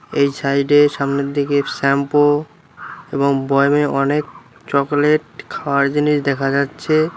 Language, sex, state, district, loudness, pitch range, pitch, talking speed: Bengali, male, West Bengal, Cooch Behar, -17 LUFS, 140-145 Hz, 140 Hz, 110 wpm